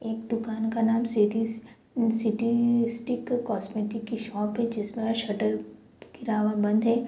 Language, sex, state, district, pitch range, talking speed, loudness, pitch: Hindi, female, Bihar, Sitamarhi, 215-230 Hz, 145 wpm, -27 LUFS, 225 Hz